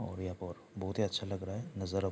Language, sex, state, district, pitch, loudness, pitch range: Hindi, male, Bihar, Saharsa, 95 Hz, -38 LUFS, 95-100 Hz